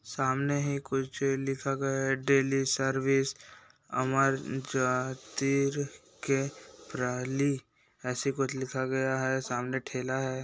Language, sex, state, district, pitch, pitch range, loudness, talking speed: Hindi, male, Chhattisgarh, Bastar, 135 Hz, 130-135 Hz, -30 LUFS, 120 wpm